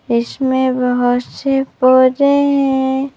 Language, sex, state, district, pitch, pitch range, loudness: Hindi, female, Madhya Pradesh, Bhopal, 265 Hz, 255-275 Hz, -14 LUFS